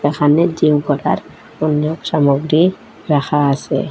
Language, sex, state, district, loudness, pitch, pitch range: Bengali, female, Assam, Hailakandi, -16 LUFS, 150 Hz, 145-155 Hz